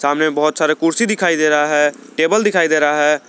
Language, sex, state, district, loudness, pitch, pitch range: Hindi, male, Jharkhand, Garhwa, -15 LUFS, 155 Hz, 150-165 Hz